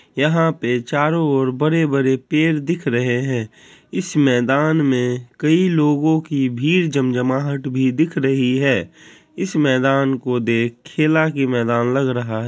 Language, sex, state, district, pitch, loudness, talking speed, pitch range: Hindi, male, Bihar, Kishanganj, 135 Hz, -18 LUFS, 145 wpm, 125-155 Hz